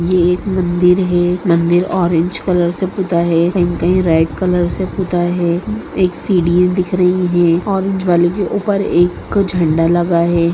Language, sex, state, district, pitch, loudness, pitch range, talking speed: Hindi, female, Bihar, Sitamarhi, 180 Hz, -14 LUFS, 170-185 Hz, 165 wpm